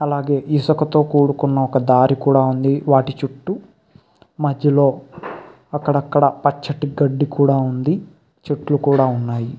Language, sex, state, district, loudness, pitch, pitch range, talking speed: Telugu, male, Andhra Pradesh, Krishna, -17 LUFS, 145 Hz, 135-150 Hz, 120 wpm